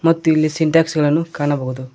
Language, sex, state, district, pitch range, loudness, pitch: Kannada, male, Karnataka, Koppal, 145-165 Hz, -17 LUFS, 155 Hz